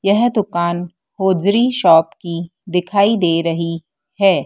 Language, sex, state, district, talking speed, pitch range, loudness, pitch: Hindi, female, Madhya Pradesh, Dhar, 120 wpm, 170-200 Hz, -16 LUFS, 180 Hz